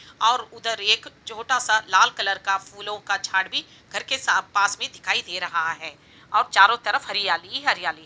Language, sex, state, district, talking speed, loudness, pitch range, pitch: Hindi, female, Bihar, Saran, 200 wpm, -22 LUFS, 195-230 Hz, 210 Hz